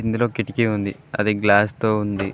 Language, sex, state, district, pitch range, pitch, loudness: Telugu, male, Telangana, Mahabubabad, 105-115 Hz, 105 Hz, -21 LUFS